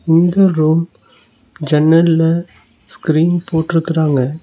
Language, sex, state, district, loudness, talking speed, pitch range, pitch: Tamil, male, Tamil Nadu, Nilgiris, -14 LUFS, 70 wpm, 155-170 Hz, 165 Hz